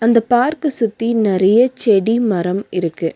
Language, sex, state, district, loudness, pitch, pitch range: Tamil, female, Tamil Nadu, Nilgiris, -16 LUFS, 225 Hz, 190-240 Hz